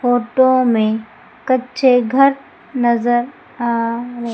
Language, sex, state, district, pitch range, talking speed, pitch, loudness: Hindi, female, Madhya Pradesh, Umaria, 235-255 Hz, 95 wpm, 245 Hz, -16 LUFS